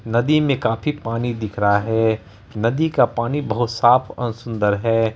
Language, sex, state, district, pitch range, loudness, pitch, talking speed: Hindi, male, Bihar, Araria, 110-120 Hz, -20 LUFS, 115 Hz, 175 wpm